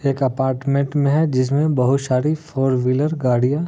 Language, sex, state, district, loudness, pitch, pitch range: Hindi, male, Bihar, Muzaffarpur, -19 LUFS, 135 Hz, 130-145 Hz